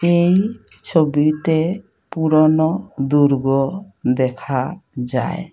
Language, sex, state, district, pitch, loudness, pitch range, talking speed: Bengali, female, Assam, Hailakandi, 155 Hz, -18 LUFS, 135-175 Hz, 65 wpm